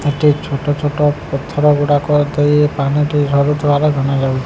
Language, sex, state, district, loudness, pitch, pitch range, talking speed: Odia, male, Odisha, Sambalpur, -15 LUFS, 145 Hz, 140-150 Hz, 120 wpm